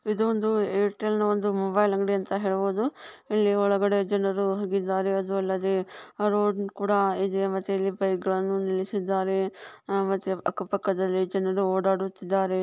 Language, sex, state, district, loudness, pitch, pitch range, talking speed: Kannada, female, Karnataka, Dharwad, -26 LUFS, 195 Hz, 190-205 Hz, 135 wpm